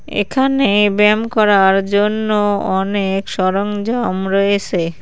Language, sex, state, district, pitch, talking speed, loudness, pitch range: Bengali, female, West Bengal, Cooch Behar, 205 Hz, 85 wpm, -15 LUFS, 195-215 Hz